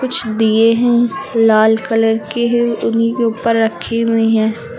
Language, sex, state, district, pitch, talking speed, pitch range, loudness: Hindi, female, Uttar Pradesh, Lucknow, 230 Hz, 165 wpm, 225-235 Hz, -14 LUFS